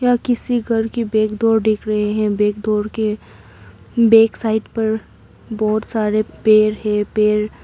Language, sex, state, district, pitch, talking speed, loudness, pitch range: Hindi, female, Arunachal Pradesh, Papum Pare, 215 Hz, 155 wpm, -17 LUFS, 210-225 Hz